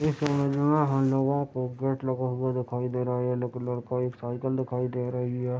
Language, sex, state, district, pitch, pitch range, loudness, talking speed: Hindi, male, Bihar, Madhepura, 125 Hz, 125-135 Hz, -28 LUFS, 235 wpm